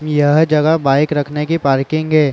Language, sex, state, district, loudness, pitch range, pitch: Hindi, male, Uttar Pradesh, Varanasi, -14 LUFS, 145-155 Hz, 150 Hz